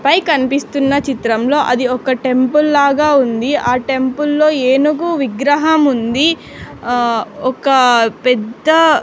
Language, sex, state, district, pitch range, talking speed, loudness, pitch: Telugu, female, Andhra Pradesh, Sri Satya Sai, 250-295 Hz, 100 wpm, -14 LUFS, 275 Hz